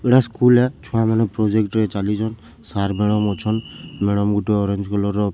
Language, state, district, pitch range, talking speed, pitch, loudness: Sambalpuri, Odisha, Sambalpur, 100-110 Hz, 200 wpm, 105 Hz, -19 LUFS